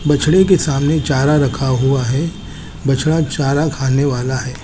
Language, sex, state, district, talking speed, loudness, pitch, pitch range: Hindi, male, Chandigarh, Chandigarh, 155 wpm, -15 LUFS, 140 Hz, 135-155 Hz